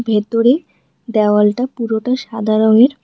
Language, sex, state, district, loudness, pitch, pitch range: Bengali, female, West Bengal, Alipurduar, -15 LUFS, 230 Hz, 215-250 Hz